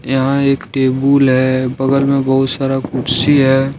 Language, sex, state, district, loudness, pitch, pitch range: Hindi, male, Jharkhand, Ranchi, -14 LUFS, 135 Hz, 130-140 Hz